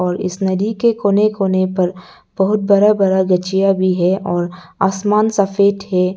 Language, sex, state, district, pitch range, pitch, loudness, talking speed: Hindi, male, Arunachal Pradesh, Lower Dibang Valley, 185-200 Hz, 195 Hz, -16 LUFS, 165 wpm